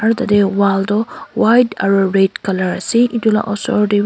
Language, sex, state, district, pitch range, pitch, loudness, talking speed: Nagamese, female, Nagaland, Kohima, 195-230 Hz, 205 Hz, -15 LUFS, 175 wpm